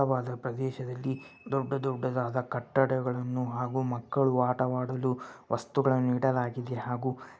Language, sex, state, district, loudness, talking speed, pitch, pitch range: Kannada, male, Karnataka, Bellary, -31 LUFS, 95 wpm, 130 Hz, 125-130 Hz